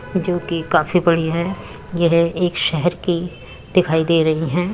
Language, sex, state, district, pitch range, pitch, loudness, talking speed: Hindi, female, Uttar Pradesh, Muzaffarnagar, 165-180 Hz, 170 Hz, -18 LUFS, 150 wpm